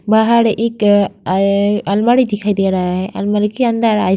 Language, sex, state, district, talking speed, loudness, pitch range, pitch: Hindi, female, Uttar Pradesh, Jyotiba Phule Nagar, 185 wpm, -14 LUFS, 195-225 Hz, 205 Hz